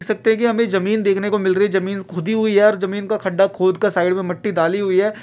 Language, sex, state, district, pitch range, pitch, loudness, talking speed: Bhojpuri, male, Bihar, Saran, 190-210 Hz, 195 Hz, -18 LUFS, 310 wpm